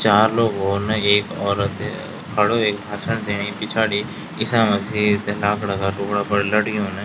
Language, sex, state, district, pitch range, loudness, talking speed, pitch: Garhwali, male, Uttarakhand, Tehri Garhwal, 100-110 Hz, -20 LUFS, 155 wpm, 105 Hz